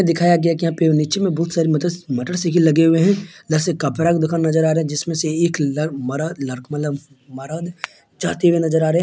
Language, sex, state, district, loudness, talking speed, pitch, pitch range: Maithili, male, Bihar, Supaul, -18 LUFS, 245 wpm, 160 Hz, 150-170 Hz